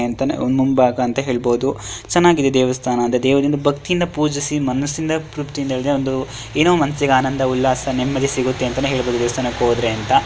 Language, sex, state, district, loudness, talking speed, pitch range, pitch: Kannada, male, Karnataka, Dharwad, -18 LUFS, 130 wpm, 125-145 Hz, 130 Hz